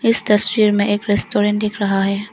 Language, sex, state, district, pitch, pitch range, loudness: Hindi, female, Arunachal Pradesh, Longding, 205 Hz, 205-210 Hz, -16 LUFS